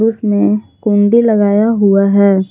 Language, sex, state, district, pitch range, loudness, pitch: Hindi, female, Jharkhand, Garhwa, 195-220 Hz, -12 LUFS, 205 Hz